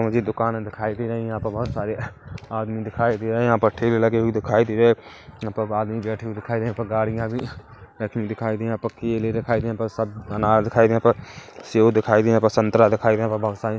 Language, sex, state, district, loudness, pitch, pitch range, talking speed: Hindi, male, Chhattisgarh, Kabirdham, -22 LUFS, 110 Hz, 110-115 Hz, 305 wpm